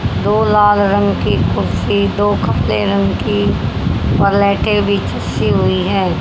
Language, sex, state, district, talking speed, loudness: Hindi, female, Haryana, Jhajjar, 115 wpm, -14 LUFS